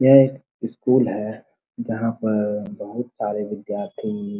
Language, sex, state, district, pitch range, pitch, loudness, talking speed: Hindi, male, Uttar Pradesh, Muzaffarnagar, 105-135 Hz, 115 Hz, -23 LUFS, 135 wpm